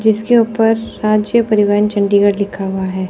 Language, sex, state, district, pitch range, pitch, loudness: Hindi, female, Chandigarh, Chandigarh, 200-220 Hz, 210 Hz, -14 LUFS